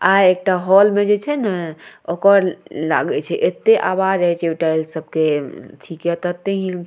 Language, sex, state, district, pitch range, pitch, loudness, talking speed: Maithili, female, Bihar, Madhepura, 165-200 Hz, 185 Hz, -17 LUFS, 155 wpm